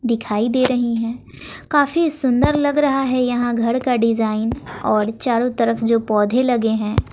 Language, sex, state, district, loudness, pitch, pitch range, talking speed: Hindi, female, Bihar, West Champaran, -18 LUFS, 240 Hz, 225-255 Hz, 170 wpm